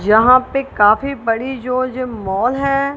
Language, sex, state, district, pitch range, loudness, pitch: Hindi, female, Punjab, Kapurthala, 225-270 Hz, -16 LUFS, 255 Hz